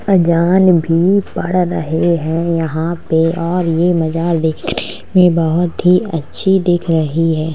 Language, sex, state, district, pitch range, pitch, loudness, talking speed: Hindi, female, Uttar Pradesh, Jalaun, 165-180 Hz, 170 Hz, -14 LUFS, 145 wpm